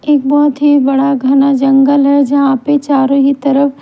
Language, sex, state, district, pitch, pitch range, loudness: Hindi, female, Himachal Pradesh, Shimla, 280 Hz, 275-285 Hz, -10 LUFS